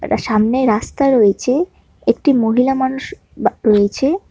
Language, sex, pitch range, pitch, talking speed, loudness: Bengali, male, 220-275 Hz, 255 Hz, 125 wpm, -16 LUFS